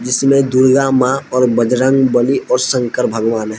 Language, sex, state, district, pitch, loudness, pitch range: Hindi, male, Jharkhand, Palamu, 125 Hz, -13 LUFS, 120-135 Hz